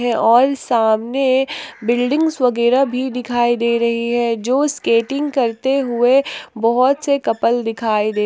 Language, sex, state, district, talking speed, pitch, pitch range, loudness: Hindi, female, Jharkhand, Palamu, 140 wpm, 245 Hz, 235-270 Hz, -17 LUFS